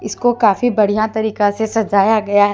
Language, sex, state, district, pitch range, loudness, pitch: Hindi, female, Jharkhand, Deoghar, 205-220 Hz, -15 LUFS, 220 Hz